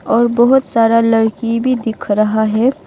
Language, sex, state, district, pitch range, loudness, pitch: Hindi, female, Arunachal Pradesh, Longding, 220-240 Hz, -14 LUFS, 230 Hz